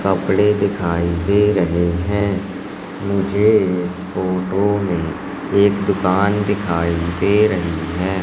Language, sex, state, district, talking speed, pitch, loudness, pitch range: Hindi, male, Madhya Pradesh, Katni, 110 wpm, 95 Hz, -18 LUFS, 90-100 Hz